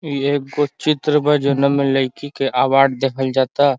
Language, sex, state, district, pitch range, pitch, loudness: Bhojpuri, male, Uttar Pradesh, Ghazipur, 135-145 Hz, 140 Hz, -17 LUFS